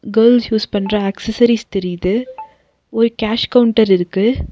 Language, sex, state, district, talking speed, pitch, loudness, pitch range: Tamil, female, Tamil Nadu, Nilgiris, 120 wpm, 225 Hz, -15 LUFS, 200-235 Hz